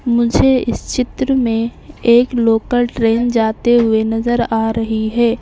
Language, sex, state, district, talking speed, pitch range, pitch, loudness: Hindi, female, Maharashtra, Mumbai Suburban, 155 wpm, 225-240 Hz, 235 Hz, -15 LUFS